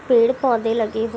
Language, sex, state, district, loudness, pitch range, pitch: Hindi, female, Uttar Pradesh, Hamirpur, -19 LUFS, 225-240 Hz, 230 Hz